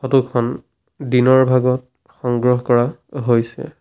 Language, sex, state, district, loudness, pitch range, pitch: Assamese, male, Assam, Sonitpur, -17 LUFS, 120-130 Hz, 125 Hz